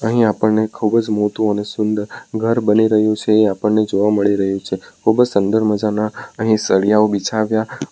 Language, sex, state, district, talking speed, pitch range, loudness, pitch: Gujarati, male, Gujarat, Valsad, 190 wpm, 105-110 Hz, -17 LUFS, 105 Hz